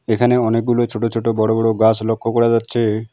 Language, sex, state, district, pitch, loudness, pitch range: Bengali, male, West Bengal, Alipurduar, 115 Hz, -17 LUFS, 110-115 Hz